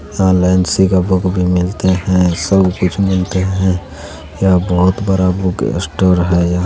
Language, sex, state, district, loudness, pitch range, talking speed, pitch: Maithili, male, Bihar, Araria, -14 LUFS, 90-95 Hz, 160 wpm, 90 Hz